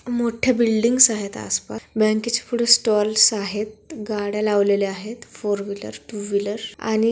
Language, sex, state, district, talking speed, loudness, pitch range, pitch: Marathi, female, Maharashtra, Pune, 145 wpm, -20 LUFS, 205-230 Hz, 215 Hz